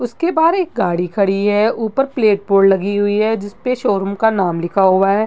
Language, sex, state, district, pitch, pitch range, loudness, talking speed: Hindi, female, Uttar Pradesh, Gorakhpur, 205 Hz, 195-230 Hz, -16 LUFS, 215 wpm